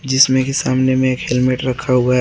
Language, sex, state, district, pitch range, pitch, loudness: Hindi, male, Jharkhand, Garhwa, 125-130 Hz, 130 Hz, -16 LUFS